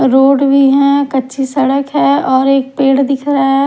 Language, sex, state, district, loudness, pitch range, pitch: Hindi, female, Haryana, Charkhi Dadri, -11 LUFS, 265-275 Hz, 275 Hz